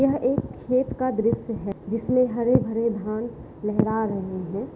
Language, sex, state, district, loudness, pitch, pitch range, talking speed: Hindi, female, Bihar, Saran, -25 LUFS, 225 Hz, 210-245 Hz, 150 wpm